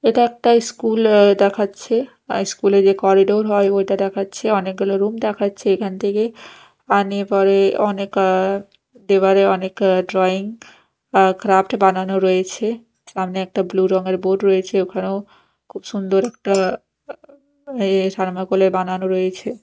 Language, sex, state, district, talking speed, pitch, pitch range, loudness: Bengali, female, Odisha, Nuapada, 130 wpm, 195 Hz, 190-210 Hz, -18 LUFS